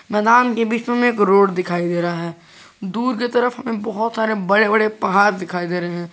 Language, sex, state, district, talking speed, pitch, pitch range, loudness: Hindi, male, Jharkhand, Garhwa, 215 wpm, 210 Hz, 180-230 Hz, -18 LUFS